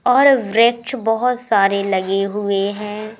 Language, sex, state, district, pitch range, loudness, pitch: Hindi, female, Madhya Pradesh, Umaria, 200-240 Hz, -17 LUFS, 215 Hz